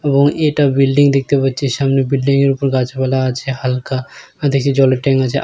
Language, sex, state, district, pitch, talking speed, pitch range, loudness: Bengali, male, West Bengal, Jalpaiguri, 135 Hz, 175 wpm, 130-140 Hz, -15 LUFS